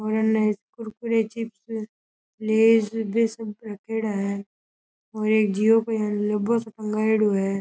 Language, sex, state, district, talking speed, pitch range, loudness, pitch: Rajasthani, male, Rajasthan, Churu, 125 wpm, 210-225 Hz, -24 LUFS, 220 Hz